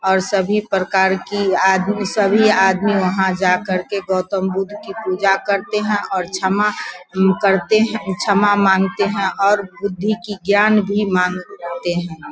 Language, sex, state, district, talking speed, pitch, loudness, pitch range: Hindi, female, Bihar, Vaishali, 160 wpm, 195 Hz, -17 LUFS, 190-205 Hz